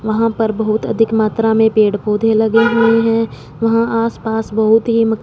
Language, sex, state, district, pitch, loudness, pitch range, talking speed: Hindi, female, Punjab, Fazilka, 225 Hz, -14 LUFS, 220-230 Hz, 185 wpm